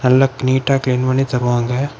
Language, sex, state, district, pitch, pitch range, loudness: Tamil, male, Tamil Nadu, Kanyakumari, 130 Hz, 125-135 Hz, -16 LUFS